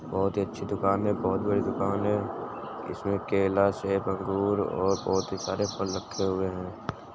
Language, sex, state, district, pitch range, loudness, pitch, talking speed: Hindi, male, Uttar Pradesh, Muzaffarnagar, 95-100 Hz, -29 LUFS, 100 Hz, 175 wpm